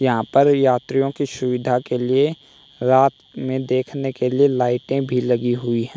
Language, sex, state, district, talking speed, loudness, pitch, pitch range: Hindi, male, Uttar Pradesh, Hamirpur, 170 wpm, -19 LUFS, 130 Hz, 125-135 Hz